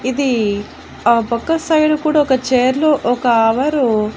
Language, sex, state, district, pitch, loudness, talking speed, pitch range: Telugu, female, Andhra Pradesh, Annamaya, 255 Hz, -15 LUFS, 160 wpm, 230-300 Hz